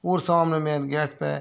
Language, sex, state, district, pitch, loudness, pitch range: Hindi, male, Bihar, Muzaffarpur, 150 Hz, -24 LUFS, 145-165 Hz